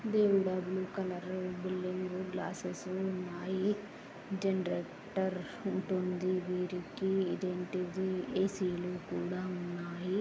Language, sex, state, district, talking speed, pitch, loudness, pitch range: Telugu, female, Andhra Pradesh, Srikakulam, 80 wpm, 185 Hz, -36 LUFS, 180-190 Hz